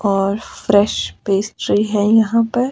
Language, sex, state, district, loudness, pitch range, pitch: Hindi, male, Himachal Pradesh, Shimla, -17 LUFS, 200-230 Hz, 210 Hz